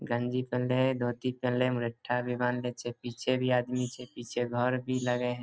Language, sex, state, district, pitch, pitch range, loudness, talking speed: Maithili, male, Bihar, Samastipur, 125 Hz, 120-125 Hz, -31 LUFS, 210 wpm